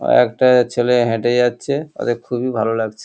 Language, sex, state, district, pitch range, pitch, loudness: Bengali, male, West Bengal, Kolkata, 115-125 Hz, 120 Hz, -17 LUFS